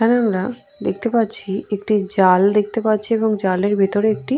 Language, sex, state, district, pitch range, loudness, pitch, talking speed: Bengali, female, West Bengal, Purulia, 195-225 Hz, -18 LUFS, 210 Hz, 150 wpm